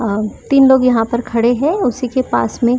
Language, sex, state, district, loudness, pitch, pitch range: Hindi, female, Maharashtra, Chandrapur, -14 LUFS, 245 Hz, 225-260 Hz